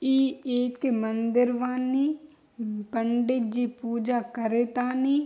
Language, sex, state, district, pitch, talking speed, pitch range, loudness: Bhojpuri, female, Bihar, East Champaran, 245 Hz, 115 wpm, 235-260 Hz, -27 LUFS